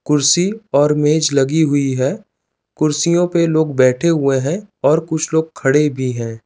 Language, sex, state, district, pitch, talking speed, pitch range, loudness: Hindi, male, Chandigarh, Chandigarh, 150 Hz, 165 wpm, 135-165 Hz, -16 LUFS